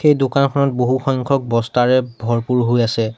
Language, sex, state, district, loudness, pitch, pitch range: Assamese, male, Assam, Sonitpur, -17 LUFS, 125 Hz, 120-135 Hz